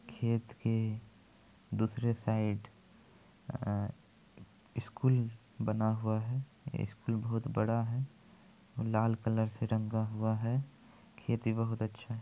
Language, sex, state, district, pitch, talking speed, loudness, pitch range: Maithili, male, Bihar, Supaul, 115 Hz, 120 wpm, -35 LUFS, 110-120 Hz